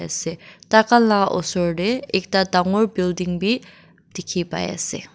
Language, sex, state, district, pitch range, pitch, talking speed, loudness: Nagamese, female, Nagaland, Dimapur, 180-210 Hz, 190 Hz, 140 wpm, -20 LUFS